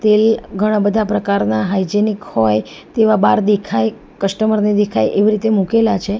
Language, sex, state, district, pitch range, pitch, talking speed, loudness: Gujarati, female, Gujarat, Valsad, 195-215 Hz, 210 Hz, 155 wpm, -16 LUFS